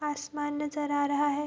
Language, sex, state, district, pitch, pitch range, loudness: Hindi, female, Bihar, Araria, 295 Hz, 290-295 Hz, -30 LUFS